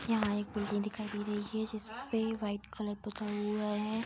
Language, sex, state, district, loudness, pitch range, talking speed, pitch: Hindi, female, Bihar, Bhagalpur, -36 LUFS, 210-220 Hz, 205 wpm, 210 Hz